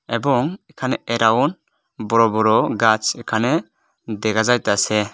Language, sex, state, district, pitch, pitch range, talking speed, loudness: Bengali, male, Tripura, West Tripura, 110 Hz, 110-120 Hz, 105 wpm, -19 LUFS